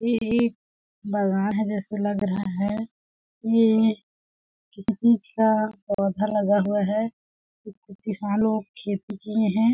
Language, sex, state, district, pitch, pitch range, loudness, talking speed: Hindi, female, Chhattisgarh, Balrampur, 210 Hz, 205-220 Hz, -24 LUFS, 130 wpm